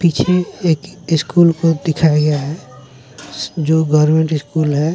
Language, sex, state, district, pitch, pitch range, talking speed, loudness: Hindi, male, Bihar, West Champaran, 160 Hz, 150-165 Hz, 135 wpm, -15 LUFS